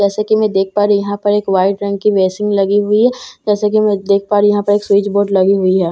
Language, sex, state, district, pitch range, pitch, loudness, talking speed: Hindi, female, Bihar, Katihar, 200-210 Hz, 205 Hz, -14 LUFS, 325 wpm